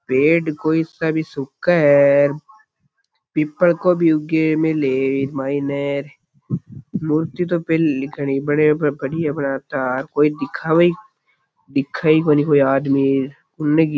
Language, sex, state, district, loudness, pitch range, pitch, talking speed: Rajasthani, male, Rajasthan, Churu, -18 LUFS, 140-160 Hz, 150 Hz, 105 wpm